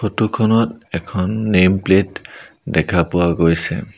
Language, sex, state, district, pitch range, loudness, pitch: Assamese, male, Assam, Sonitpur, 85-110 Hz, -17 LUFS, 95 Hz